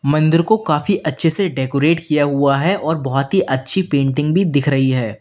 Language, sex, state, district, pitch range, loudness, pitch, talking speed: Hindi, male, Uttar Pradesh, Lalitpur, 140-170 Hz, -16 LUFS, 150 Hz, 205 wpm